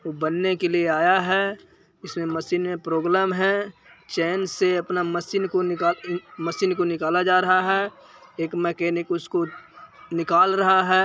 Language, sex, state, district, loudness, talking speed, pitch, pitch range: Hindi, male, Bihar, Jahanabad, -23 LUFS, 155 wpm, 180 Hz, 170-190 Hz